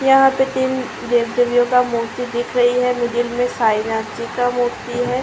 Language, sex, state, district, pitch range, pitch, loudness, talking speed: Hindi, female, Uttar Pradesh, Ghazipur, 240-250 Hz, 245 Hz, -18 LUFS, 205 wpm